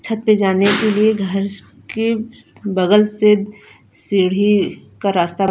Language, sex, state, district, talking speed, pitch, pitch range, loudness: Hindi, female, Punjab, Fazilka, 140 wpm, 205 Hz, 195-215 Hz, -16 LUFS